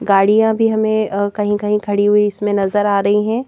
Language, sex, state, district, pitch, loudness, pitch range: Hindi, female, Madhya Pradesh, Bhopal, 205 Hz, -15 LUFS, 205-215 Hz